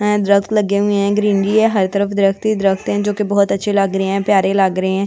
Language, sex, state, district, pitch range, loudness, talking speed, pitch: Hindi, female, Delhi, New Delhi, 195-205 Hz, -15 LUFS, 270 wpm, 200 Hz